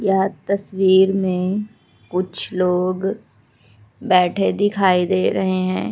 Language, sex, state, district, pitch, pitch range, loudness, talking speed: Hindi, female, Uttar Pradesh, Hamirpur, 185 Hz, 180-195 Hz, -19 LUFS, 100 wpm